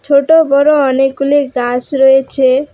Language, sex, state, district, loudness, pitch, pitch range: Bengali, female, West Bengal, Alipurduar, -11 LUFS, 275 Hz, 265-285 Hz